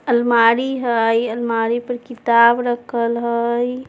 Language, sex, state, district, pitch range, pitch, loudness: Maithili, female, Bihar, Samastipur, 235-245 Hz, 235 Hz, -17 LUFS